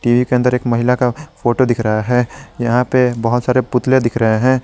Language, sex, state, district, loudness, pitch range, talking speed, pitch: Hindi, male, Jharkhand, Garhwa, -15 LUFS, 120-125 Hz, 235 wpm, 125 Hz